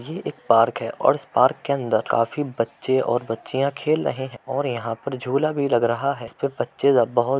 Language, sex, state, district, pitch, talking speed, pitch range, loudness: Hindi, male, Uttar Pradesh, Muzaffarnagar, 130 Hz, 225 wpm, 115-140 Hz, -22 LUFS